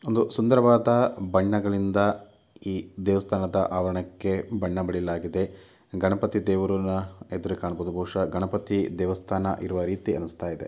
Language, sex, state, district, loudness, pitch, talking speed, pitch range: Kannada, male, Karnataka, Mysore, -26 LUFS, 95 Hz, 110 wpm, 90-100 Hz